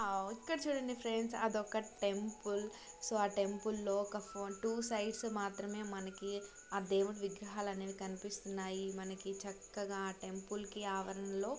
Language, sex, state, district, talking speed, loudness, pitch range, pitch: Telugu, female, Andhra Pradesh, Krishna, 145 wpm, -41 LUFS, 195-215 Hz, 200 Hz